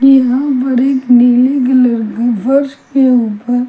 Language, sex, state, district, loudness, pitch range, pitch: Hindi, female, Delhi, New Delhi, -11 LUFS, 245-270 Hz, 255 Hz